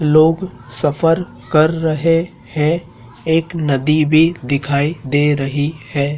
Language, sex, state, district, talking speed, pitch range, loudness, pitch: Hindi, male, Madhya Pradesh, Dhar, 115 wpm, 140-165 Hz, -16 LUFS, 150 Hz